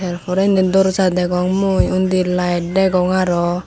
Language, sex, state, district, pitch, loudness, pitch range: Chakma, female, Tripura, Dhalai, 185 Hz, -16 LUFS, 180-190 Hz